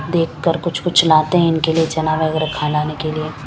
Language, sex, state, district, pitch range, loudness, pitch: Hindi, female, Chandigarh, Chandigarh, 155-165 Hz, -17 LUFS, 160 Hz